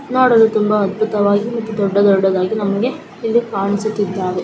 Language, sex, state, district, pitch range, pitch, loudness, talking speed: Kannada, female, Karnataka, Gulbarga, 200-225 Hz, 210 Hz, -16 LUFS, 95 wpm